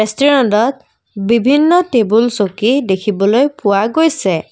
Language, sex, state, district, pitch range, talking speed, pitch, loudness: Assamese, female, Assam, Kamrup Metropolitan, 205-275 Hz, 95 wpm, 230 Hz, -13 LUFS